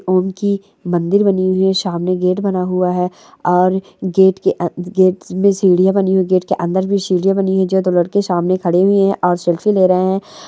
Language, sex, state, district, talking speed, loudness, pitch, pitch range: Hindi, female, West Bengal, Purulia, 210 wpm, -15 LUFS, 185 Hz, 180-190 Hz